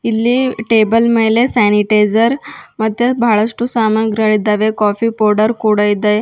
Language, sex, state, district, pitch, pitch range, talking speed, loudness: Kannada, female, Karnataka, Bidar, 220 Hz, 215-230 Hz, 105 wpm, -13 LUFS